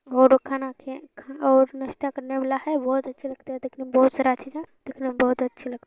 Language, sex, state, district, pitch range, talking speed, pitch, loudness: Hindi, female, Bihar, Lakhisarai, 260-275 Hz, 245 wpm, 265 Hz, -23 LUFS